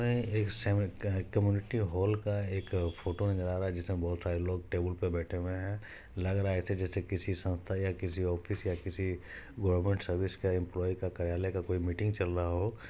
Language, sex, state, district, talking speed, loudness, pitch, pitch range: Maithili, male, Bihar, Supaul, 200 wpm, -34 LUFS, 95 Hz, 90-100 Hz